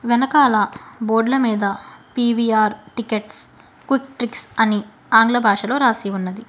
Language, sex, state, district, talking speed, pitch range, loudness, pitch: Telugu, female, Telangana, Hyderabad, 110 wpm, 215-245 Hz, -18 LUFS, 225 Hz